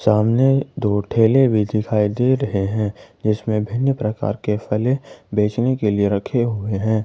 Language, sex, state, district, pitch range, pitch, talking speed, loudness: Hindi, male, Jharkhand, Ranchi, 105-125 Hz, 110 Hz, 160 wpm, -19 LUFS